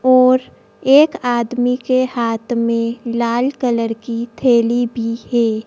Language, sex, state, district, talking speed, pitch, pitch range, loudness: Hindi, female, Madhya Pradesh, Bhopal, 125 wpm, 240 Hz, 230-255 Hz, -16 LUFS